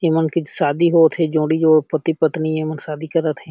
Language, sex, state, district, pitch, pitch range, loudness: Chhattisgarhi, male, Chhattisgarh, Sarguja, 160 Hz, 155-165 Hz, -18 LUFS